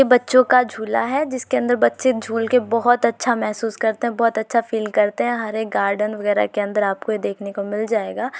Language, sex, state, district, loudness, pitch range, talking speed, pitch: Hindi, female, Uttar Pradesh, Varanasi, -20 LUFS, 205-240 Hz, 220 wpm, 220 Hz